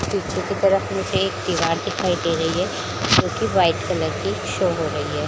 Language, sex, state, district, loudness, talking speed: Hindi, female, Chhattisgarh, Bilaspur, -21 LUFS, 215 wpm